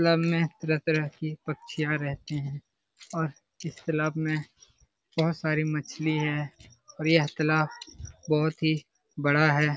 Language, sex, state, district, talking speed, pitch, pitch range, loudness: Hindi, male, Bihar, Jamui, 140 wpm, 155 Hz, 150-160 Hz, -28 LUFS